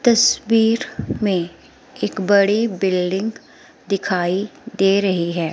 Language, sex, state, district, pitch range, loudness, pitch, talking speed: Hindi, female, Himachal Pradesh, Shimla, 185-225 Hz, -19 LUFS, 195 Hz, 95 wpm